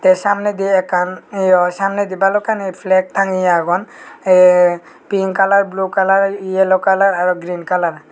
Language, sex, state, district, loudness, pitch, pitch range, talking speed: Chakma, male, Tripura, Unakoti, -15 LUFS, 190 Hz, 180-195 Hz, 150 wpm